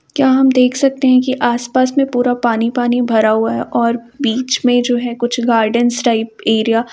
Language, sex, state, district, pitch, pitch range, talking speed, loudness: Hindi, female, Uttar Pradesh, Varanasi, 240 Hz, 235-255 Hz, 200 wpm, -14 LUFS